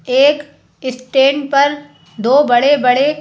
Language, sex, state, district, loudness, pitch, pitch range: Hindi, female, Madhya Pradesh, Bhopal, -13 LUFS, 270 Hz, 250-290 Hz